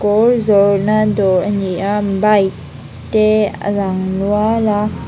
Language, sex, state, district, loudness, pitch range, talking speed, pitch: Mizo, female, Mizoram, Aizawl, -15 LUFS, 195-210 Hz, 130 wpm, 205 Hz